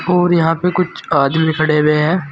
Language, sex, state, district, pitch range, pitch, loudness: Hindi, male, Uttar Pradesh, Saharanpur, 150-175 Hz, 165 Hz, -15 LUFS